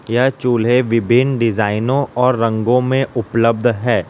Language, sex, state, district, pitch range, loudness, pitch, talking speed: Hindi, male, Gujarat, Valsad, 115-125 Hz, -16 LUFS, 120 Hz, 130 wpm